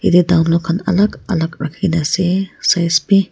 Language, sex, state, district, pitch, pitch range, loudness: Nagamese, female, Nagaland, Kohima, 175 Hz, 165-190 Hz, -16 LUFS